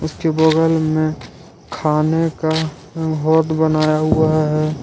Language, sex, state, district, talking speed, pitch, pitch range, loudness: Hindi, male, Jharkhand, Ranchi, 100 wpm, 155 Hz, 155-160 Hz, -17 LUFS